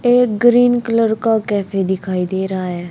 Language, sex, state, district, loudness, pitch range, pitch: Hindi, female, Haryana, Charkhi Dadri, -16 LUFS, 190-240 Hz, 210 Hz